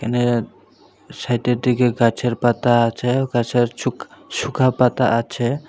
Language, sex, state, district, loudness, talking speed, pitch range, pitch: Bengali, male, Tripura, Unakoti, -19 LUFS, 115 wpm, 120-125 Hz, 120 Hz